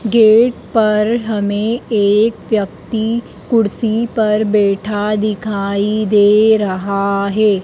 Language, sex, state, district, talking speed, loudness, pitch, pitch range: Hindi, female, Madhya Pradesh, Dhar, 95 wpm, -15 LUFS, 215 Hz, 205-220 Hz